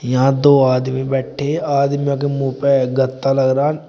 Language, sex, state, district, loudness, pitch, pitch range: Hindi, male, Uttar Pradesh, Shamli, -16 LUFS, 135 Hz, 130-140 Hz